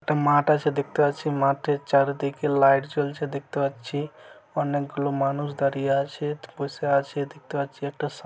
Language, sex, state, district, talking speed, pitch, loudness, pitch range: Bengali, male, West Bengal, Malda, 155 wpm, 140 Hz, -25 LUFS, 140-145 Hz